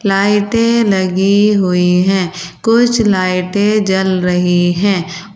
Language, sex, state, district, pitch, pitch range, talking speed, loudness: Hindi, female, Uttar Pradesh, Saharanpur, 195 Hz, 180-205 Hz, 100 wpm, -13 LUFS